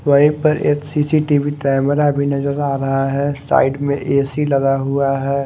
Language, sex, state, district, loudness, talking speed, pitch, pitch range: Hindi, male, Haryana, Rohtak, -17 LUFS, 175 wpm, 140 Hz, 135-145 Hz